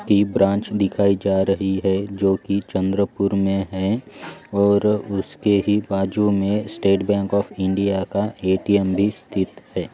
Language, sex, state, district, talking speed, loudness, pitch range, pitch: Hindi, male, Maharashtra, Chandrapur, 150 wpm, -20 LUFS, 95-100 Hz, 100 Hz